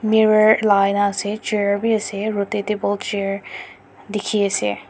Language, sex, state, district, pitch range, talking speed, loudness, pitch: Nagamese, female, Nagaland, Dimapur, 200-215 Hz, 135 wpm, -19 LUFS, 205 Hz